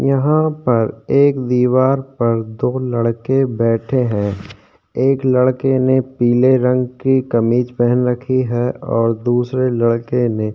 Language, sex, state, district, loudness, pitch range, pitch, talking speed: Hindi, male, Uttarakhand, Tehri Garhwal, -16 LUFS, 115-130 Hz, 125 Hz, 135 wpm